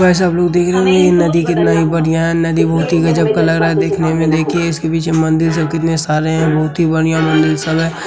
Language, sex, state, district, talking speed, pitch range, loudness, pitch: Hindi, male, Uttar Pradesh, Hamirpur, 245 wpm, 160-170 Hz, -13 LUFS, 165 Hz